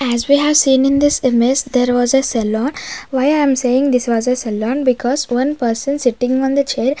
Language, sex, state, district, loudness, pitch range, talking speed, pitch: English, female, Maharashtra, Gondia, -15 LUFS, 245-275 Hz, 225 wpm, 260 Hz